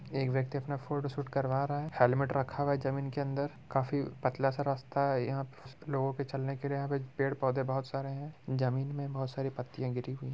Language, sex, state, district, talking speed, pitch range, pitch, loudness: Hindi, male, Bihar, Muzaffarpur, 225 wpm, 130-140 Hz, 135 Hz, -34 LUFS